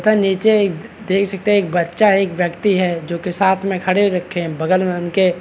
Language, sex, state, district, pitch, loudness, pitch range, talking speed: Hindi, male, Uttar Pradesh, Varanasi, 190 Hz, -17 LUFS, 175-200 Hz, 255 wpm